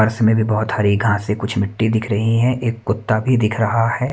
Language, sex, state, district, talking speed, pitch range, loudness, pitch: Hindi, male, Haryana, Charkhi Dadri, 245 wpm, 105-115 Hz, -18 LUFS, 110 Hz